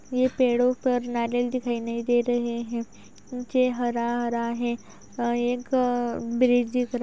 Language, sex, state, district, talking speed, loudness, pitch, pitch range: Hindi, female, Uttar Pradesh, Budaun, 160 wpm, -25 LUFS, 245 Hz, 235-250 Hz